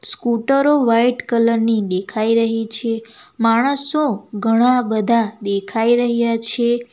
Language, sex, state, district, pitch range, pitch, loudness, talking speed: Gujarati, female, Gujarat, Valsad, 225-240 Hz, 230 Hz, -17 LUFS, 110 wpm